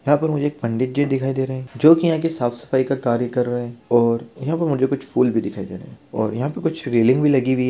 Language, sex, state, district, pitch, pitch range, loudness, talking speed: Hindi, male, Maharashtra, Sindhudurg, 130 Hz, 120-145 Hz, -20 LUFS, 210 wpm